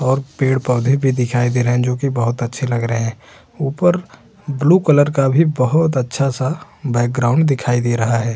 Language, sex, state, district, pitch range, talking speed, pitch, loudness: Hindi, male, Uttar Pradesh, Hamirpur, 120-145 Hz, 185 wpm, 130 Hz, -17 LUFS